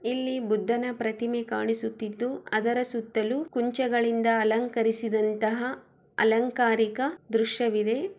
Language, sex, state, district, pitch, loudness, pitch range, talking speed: Kannada, female, Karnataka, Chamarajanagar, 230 Hz, -27 LUFS, 220-245 Hz, 75 wpm